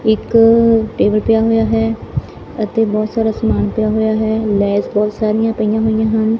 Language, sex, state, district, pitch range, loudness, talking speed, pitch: Punjabi, female, Punjab, Fazilka, 215-225 Hz, -15 LUFS, 170 wpm, 220 Hz